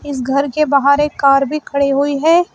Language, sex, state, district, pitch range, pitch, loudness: Hindi, female, Uttar Pradesh, Shamli, 275-300 Hz, 280 Hz, -14 LUFS